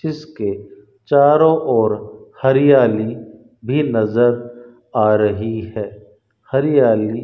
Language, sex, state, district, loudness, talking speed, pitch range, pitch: Hindi, male, Rajasthan, Bikaner, -16 LUFS, 90 wpm, 105-135 Hz, 115 Hz